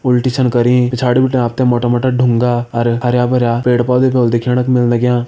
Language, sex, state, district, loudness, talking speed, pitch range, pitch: Hindi, male, Uttarakhand, Tehri Garhwal, -13 LUFS, 240 wpm, 120-125 Hz, 125 Hz